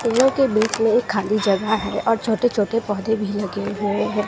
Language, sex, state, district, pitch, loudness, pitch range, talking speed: Hindi, female, Bihar, West Champaran, 215 Hz, -20 LUFS, 205-230 Hz, 225 wpm